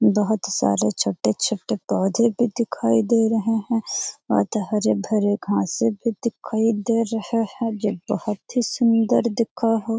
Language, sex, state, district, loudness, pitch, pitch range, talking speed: Hindi, female, Bihar, Jamui, -22 LUFS, 225 Hz, 205-230 Hz, 140 wpm